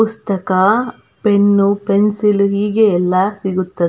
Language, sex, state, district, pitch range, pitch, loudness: Kannada, female, Karnataka, Belgaum, 190-210 Hz, 200 Hz, -15 LUFS